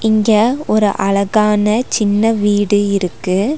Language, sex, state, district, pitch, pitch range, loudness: Tamil, female, Tamil Nadu, Nilgiris, 210 Hz, 200-220 Hz, -14 LUFS